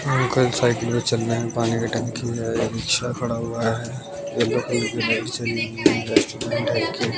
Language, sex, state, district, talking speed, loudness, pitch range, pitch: Hindi, male, Bihar, West Champaran, 115 wpm, -22 LUFS, 115-125 Hz, 115 Hz